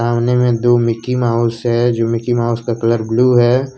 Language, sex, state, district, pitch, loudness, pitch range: Hindi, male, Jharkhand, Ranchi, 120 Hz, -15 LUFS, 115-120 Hz